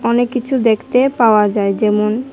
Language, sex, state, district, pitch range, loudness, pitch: Bengali, male, Tripura, West Tripura, 210-250 Hz, -14 LUFS, 230 Hz